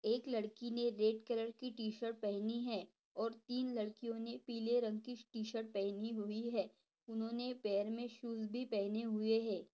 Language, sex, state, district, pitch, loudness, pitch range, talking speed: Hindi, female, Maharashtra, Dhule, 225 Hz, -41 LUFS, 215-235 Hz, 175 wpm